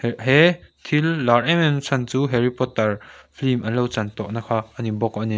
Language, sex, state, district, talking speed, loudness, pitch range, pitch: Mizo, male, Mizoram, Aizawl, 245 wpm, -21 LUFS, 110-135 Hz, 120 Hz